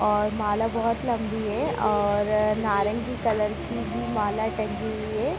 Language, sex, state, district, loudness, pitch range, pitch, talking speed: Hindi, female, Bihar, East Champaran, -26 LUFS, 205-220 Hz, 210 Hz, 155 wpm